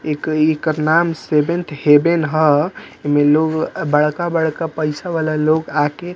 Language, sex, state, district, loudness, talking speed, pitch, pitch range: Bhojpuri, male, Bihar, Muzaffarpur, -17 LUFS, 135 wpm, 155 Hz, 150-165 Hz